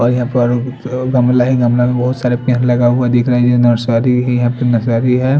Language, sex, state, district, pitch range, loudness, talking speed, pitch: Hindi, male, Punjab, Fazilka, 120-125 Hz, -13 LUFS, 235 wpm, 125 Hz